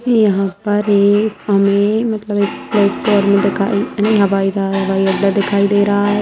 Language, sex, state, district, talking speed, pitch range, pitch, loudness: Hindi, female, Bihar, Saran, 165 wpm, 200-210 Hz, 200 Hz, -15 LUFS